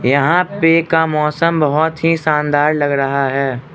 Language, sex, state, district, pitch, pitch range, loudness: Hindi, male, Arunachal Pradesh, Lower Dibang Valley, 150 Hz, 140-165 Hz, -15 LUFS